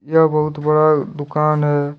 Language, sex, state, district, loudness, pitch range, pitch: Hindi, male, Jharkhand, Deoghar, -17 LUFS, 145-155 Hz, 150 Hz